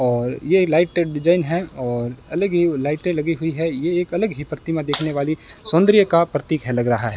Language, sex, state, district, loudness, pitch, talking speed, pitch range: Hindi, male, Rajasthan, Bikaner, -20 LUFS, 160 Hz, 220 wpm, 140-175 Hz